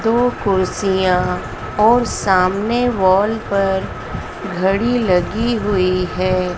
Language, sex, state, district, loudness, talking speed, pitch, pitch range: Hindi, female, Madhya Pradesh, Dhar, -17 LUFS, 90 wpm, 195 Hz, 185-220 Hz